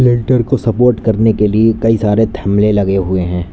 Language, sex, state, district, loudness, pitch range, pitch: Hindi, male, Uttar Pradesh, Lalitpur, -13 LUFS, 100-115 Hz, 110 Hz